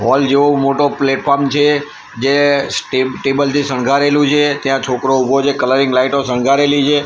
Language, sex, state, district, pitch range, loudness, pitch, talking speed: Gujarati, male, Gujarat, Gandhinagar, 135-145 Hz, -14 LUFS, 140 Hz, 160 wpm